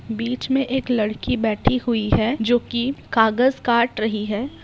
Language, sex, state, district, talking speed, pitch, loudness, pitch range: Hindi, female, Bihar, Muzaffarpur, 170 wpm, 235 Hz, -21 LUFS, 220-255 Hz